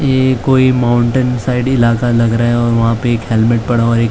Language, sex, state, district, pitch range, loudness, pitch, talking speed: Hindi, male, Maharashtra, Mumbai Suburban, 115-125 Hz, -13 LUFS, 120 Hz, 235 wpm